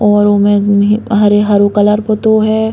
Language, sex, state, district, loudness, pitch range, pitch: Bundeli, female, Uttar Pradesh, Hamirpur, -10 LUFS, 205-215 Hz, 210 Hz